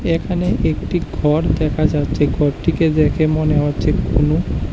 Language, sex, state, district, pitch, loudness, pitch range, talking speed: Bengali, male, Tripura, West Tripura, 150 Hz, -17 LUFS, 145-155 Hz, 140 wpm